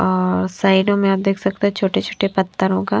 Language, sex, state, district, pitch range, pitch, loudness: Hindi, female, Himachal Pradesh, Shimla, 185-195 Hz, 195 Hz, -18 LUFS